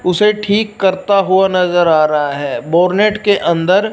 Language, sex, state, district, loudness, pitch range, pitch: Hindi, male, Punjab, Fazilka, -13 LUFS, 170-205 Hz, 190 Hz